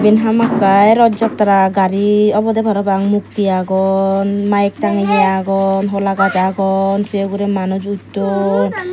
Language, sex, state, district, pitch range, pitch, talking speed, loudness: Chakma, female, Tripura, Dhalai, 195-210 Hz, 200 Hz, 130 wpm, -14 LUFS